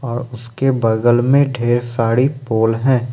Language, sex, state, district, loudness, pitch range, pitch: Hindi, male, Jharkhand, Ranchi, -16 LUFS, 120-130 Hz, 120 Hz